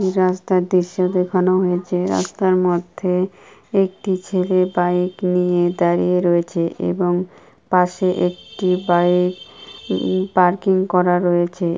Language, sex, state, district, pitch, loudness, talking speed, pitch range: Bengali, female, West Bengal, Kolkata, 180 Hz, -18 LUFS, 105 wpm, 175-185 Hz